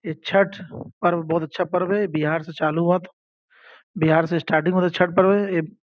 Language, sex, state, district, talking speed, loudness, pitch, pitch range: Hindi, male, Uttar Pradesh, Gorakhpur, 205 wpm, -21 LUFS, 180 Hz, 160-190 Hz